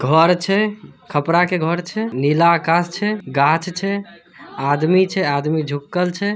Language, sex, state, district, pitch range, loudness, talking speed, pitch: Hindi, male, Bihar, Samastipur, 155-190 Hz, -18 LUFS, 150 wpm, 175 Hz